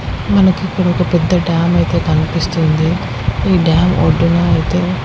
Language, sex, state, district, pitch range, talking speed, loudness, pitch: Telugu, female, Andhra Pradesh, Srikakulam, 160-180 Hz, 120 wpm, -14 LUFS, 170 Hz